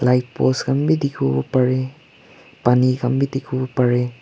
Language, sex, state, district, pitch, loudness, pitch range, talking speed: Nagamese, male, Nagaland, Kohima, 130 Hz, -19 LUFS, 125-135 Hz, 155 wpm